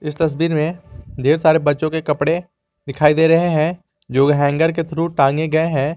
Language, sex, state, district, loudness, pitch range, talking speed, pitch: Hindi, male, Jharkhand, Garhwa, -17 LUFS, 145-165 Hz, 190 wpm, 155 Hz